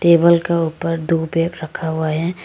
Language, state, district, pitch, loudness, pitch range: Hindi, Arunachal Pradesh, Lower Dibang Valley, 165 Hz, -18 LUFS, 160-170 Hz